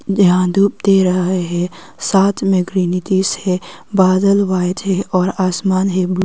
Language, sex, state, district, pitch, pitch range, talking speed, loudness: Hindi, female, Arunachal Pradesh, Longding, 185 Hz, 180-195 Hz, 165 wpm, -15 LUFS